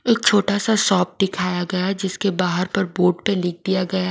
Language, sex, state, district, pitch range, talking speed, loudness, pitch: Hindi, female, Odisha, Nuapada, 180-200 Hz, 220 wpm, -20 LUFS, 190 Hz